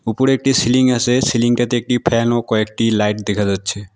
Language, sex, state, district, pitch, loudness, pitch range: Bengali, female, West Bengal, Alipurduar, 120 Hz, -16 LUFS, 110-125 Hz